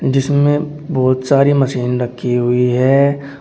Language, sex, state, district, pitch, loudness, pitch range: Hindi, male, Uttar Pradesh, Shamli, 135 Hz, -15 LUFS, 125-140 Hz